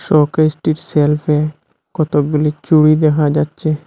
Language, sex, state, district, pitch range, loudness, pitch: Bengali, male, Assam, Hailakandi, 150-155 Hz, -14 LUFS, 150 Hz